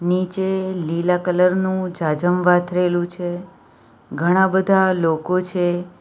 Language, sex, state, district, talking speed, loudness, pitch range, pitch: Gujarati, female, Gujarat, Valsad, 110 wpm, -19 LUFS, 175-185 Hz, 180 Hz